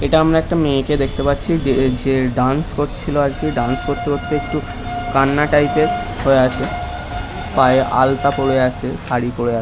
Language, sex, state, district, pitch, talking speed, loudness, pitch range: Bengali, male, West Bengal, Kolkata, 135 Hz, 160 wpm, -17 LUFS, 125-145 Hz